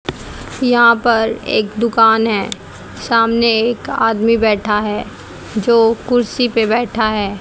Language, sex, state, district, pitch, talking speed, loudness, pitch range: Hindi, female, Haryana, Rohtak, 225 Hz, 120 wpm, -14 LUFS, 220-235 Hz